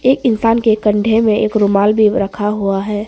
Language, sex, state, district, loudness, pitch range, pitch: Hindi, female, Arunachal Pradesh, Papum Pare, -14 LUFS, 205-225 Hz, 215 Hz